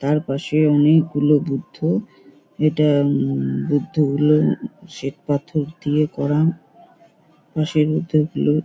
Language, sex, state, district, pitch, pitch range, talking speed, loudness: Bengali, female, West Bengal, North 24 Parganas, 150 Hz, 145-155 Hz, 90 wpm, -19 LUFS